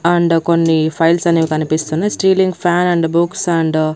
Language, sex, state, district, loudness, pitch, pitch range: Telugu, female, Andhra Pradesh, Annamaya, -14 LUFS, 170 Hz, 160-175 Hz